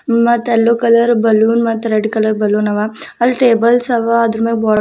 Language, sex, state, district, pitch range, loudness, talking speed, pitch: Kannada, female, Karnataka, Bidar, 220-235 Hz, -13 LUFS, 160 wpm, 230 Hz